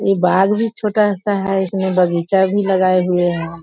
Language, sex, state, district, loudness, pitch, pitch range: Hindi, female, Bihar, East Champaran, -16 LUFS, 190 Hz, 180-200 Hz